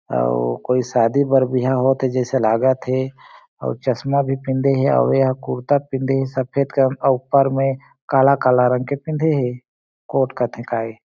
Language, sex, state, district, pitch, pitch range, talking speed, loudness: Chhattisgarhi, male, Chhattisgarh, Jashpur, 130 Hz, 125-135 Hz, 165 wpm, -19 LUFS